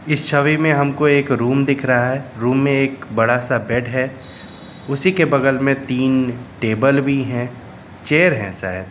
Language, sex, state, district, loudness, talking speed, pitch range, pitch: Hindi, male, West Bengal, Darjeeling, -17 LUFS, 180 wpm, 120-140 Hz, 130 Hz